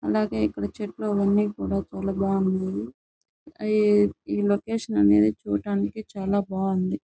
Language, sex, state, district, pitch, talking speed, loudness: Telugu, female, Andhra Pradesh, Chittoor, 195 Hz, 125 wpm, -25 LUFS